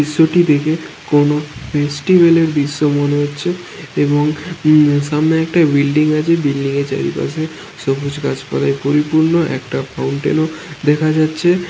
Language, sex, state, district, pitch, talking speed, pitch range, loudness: Bengali, male, West Bengal, Kolkata, 150 Hz, 140 wpm, 145-160 Hz, -15 LUFS